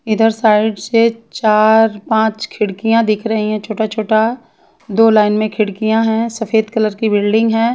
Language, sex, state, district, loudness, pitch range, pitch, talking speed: Hindi, female, Haryana, Charkhi Dadri, -14 LUFS, 215-225 Hz, 220 Hz, 160 wpm